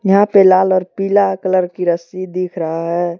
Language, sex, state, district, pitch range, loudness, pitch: Hindi, male, Jharkhand, Deoghar, 175-195 Hz, -15 LUFS, 185 Hz